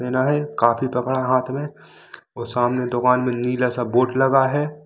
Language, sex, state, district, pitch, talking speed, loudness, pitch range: Hindi, male, Jharkhand, Jamtara, 125 Hz, 160 wpm, -20 LUFS, 125-135 Hz